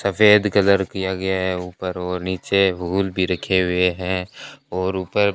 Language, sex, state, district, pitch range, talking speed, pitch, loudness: Hindi, male, Rajasthan, Bikaner, 90-100 Hz, 170 wpm, 95 Hz, -20 LUFS